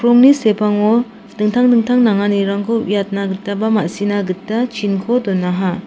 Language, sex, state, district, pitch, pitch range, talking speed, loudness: Garo, female, Meghalaya, South Garo Hills, 210 Hz, 200-230 Hz, 110 wpm, -15 LUFS